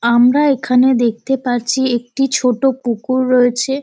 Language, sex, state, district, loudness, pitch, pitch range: Bengali, female, West Bengal, Dakshin Dinajpur, -15 LUFS, 250 Hz, 245-265 Hz